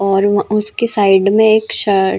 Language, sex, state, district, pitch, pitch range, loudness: Hindi, female, Chhattisgarh, Balrampur, 205 Hz, 195-215 Hz, -13 LUFS